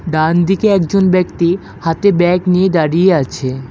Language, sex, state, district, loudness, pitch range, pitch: Bengali, male, West Bengal, Alipurduar, -13 LUFS, 160-190 Hz, 175 Hz